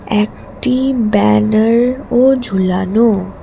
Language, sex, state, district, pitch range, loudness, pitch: Bengali, female, West Bengal, Alipurduar, 205-250 Hz, -13 LUFS, 220 Hz